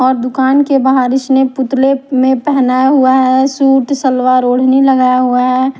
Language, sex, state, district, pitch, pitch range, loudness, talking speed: Hindi, female, Haryana, Rohtak, 260 Hz, 255-270 Hz, -11 LUFS, 165 wpm